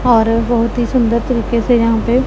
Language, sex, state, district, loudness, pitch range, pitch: Hindi, female, Punjab, Pathankot, -14 LUFS, 230-245 Hz, 235 Hz